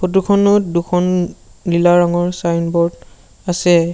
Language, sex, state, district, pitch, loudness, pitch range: Assamese, male, Assam, Sonitpur, 175 Hz, -15 LUFS, 170-180 Hz